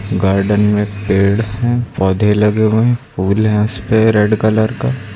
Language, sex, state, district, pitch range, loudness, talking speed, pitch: Hindi, male, Uttar Pradesh, Lucknow, 100-110 Hz, -14 LUFS, 165 wpm, 105 Hz